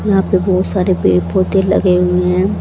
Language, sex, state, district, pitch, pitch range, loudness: Hindi, female, Haryana, Jhajjar, 185 Hz, 180-190 Hz, -14 LUFS